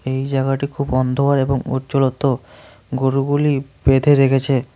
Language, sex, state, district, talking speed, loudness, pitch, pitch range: Bengali, male, West Bengal, Cooch Behar, 115 wpm, -18 LUFS, 135 Hz, 130-140 Hz